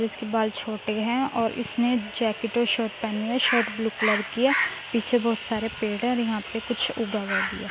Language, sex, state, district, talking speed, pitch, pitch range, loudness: Hindi, female, Uttar Pradesh, Muzaffarnagar, 250 wpm, 225 Hz, 215-240 Hz, -25 LUFS